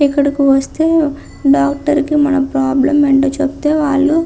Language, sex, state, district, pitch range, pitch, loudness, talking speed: Telugu, female, Andhra Pradesh, Visakhapatnam, 275-295 Hz, 285 Hz, -13 LUFS, 140 wpm